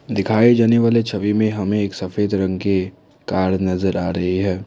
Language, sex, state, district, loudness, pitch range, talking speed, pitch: Hindi, male, Assam, Kamrup Metropolitan, -18 LUFS, 95-110 Hz, 195 wpm, 100 Hz